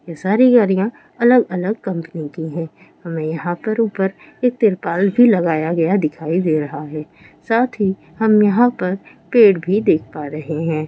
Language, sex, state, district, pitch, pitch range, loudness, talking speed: Hindi, female, Rajasthan, Churu, 185 Hz, 160-220 Hz, -17 LUFS, 170 wpm